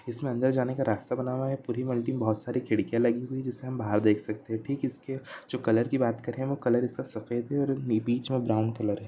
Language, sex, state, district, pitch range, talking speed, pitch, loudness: Hindi, male, Chhattisgarh, Sarguja, 115-130 Hz, 280 wpm, 125 Hz, -29 LUFS